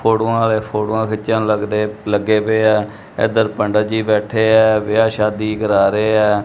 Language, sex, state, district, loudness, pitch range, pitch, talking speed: Punjabi, male, Punjab, Kapurthala, -16 LUFS, 105-110 Hz, 110 Hz, 165 wpm